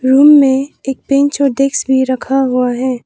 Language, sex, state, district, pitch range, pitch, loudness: Hindi, female, Arunachal Pradesh, Papum Pare, 260-275 Hz, 270 Hz, -12 LUFS